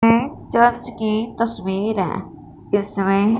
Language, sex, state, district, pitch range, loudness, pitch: Hindi, female, Punjab, Fazilka, 195-230 Hz, -20 LUFS, 215 Hz